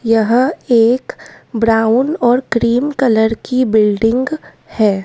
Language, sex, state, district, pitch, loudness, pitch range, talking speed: Hindi, female, Madhya Pradesh, Dhar, 235 Hz, -14 LUFS, 225-255 Hz, 105 wpm